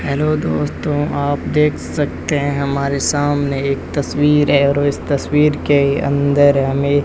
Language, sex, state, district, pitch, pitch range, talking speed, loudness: Hindi, male, Rajasthan, Bikaner, 145 Hz, 140-145 Hz, 155 wpm, -16 LUFS